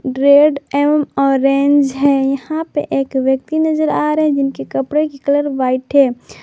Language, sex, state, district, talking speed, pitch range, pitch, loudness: Hindi, female, Jharkhand, Garhwa, 170 wpm, 270-300 Hz, 280 Hz, -15 LUFS